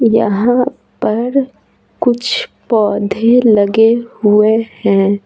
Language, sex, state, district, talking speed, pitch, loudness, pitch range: Hindi, female, Bihar, Patna, 80 wpm, 225 Hz, -13 LUFS, 210-240 Hz